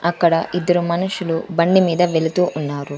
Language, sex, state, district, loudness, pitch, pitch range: Telugu, female, Andhra Pradesh, Sri Satya Sai, -18 LUFS, 170 Hz, 165-180 Hz